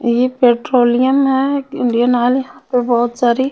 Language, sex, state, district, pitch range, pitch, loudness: Hindi, female, Bihar, Patna, 240-265 Hz, 250 Hz, -15 LUFS